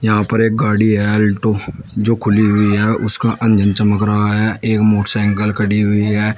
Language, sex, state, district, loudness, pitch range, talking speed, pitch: Hindi, male, Uttar Pradesh, Shamli, -14 LUFS, 105-110 Hz, 190 wpm, 105 Hz